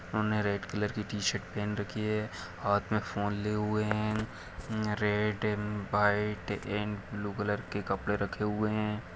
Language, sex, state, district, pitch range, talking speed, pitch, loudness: Hindi, male, Chhattisgarh, Kabirdham, 100-105 Hz, 170 wpm, 105 Hz, -32 LUFS